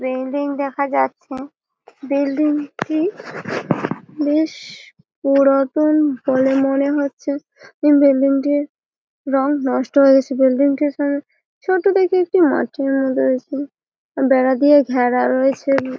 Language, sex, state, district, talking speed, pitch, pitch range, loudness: Bengali, female, West Bengal, Malda, 110 wpm, 280 Hz, 270-290 Hz, -17 LUFS